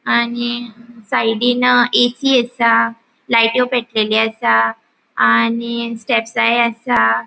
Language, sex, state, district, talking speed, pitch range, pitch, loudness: Konkani, female, Goa, North and South Goa, 85 wpm, 225-240 Hz, 235 Hz, -15 LUFS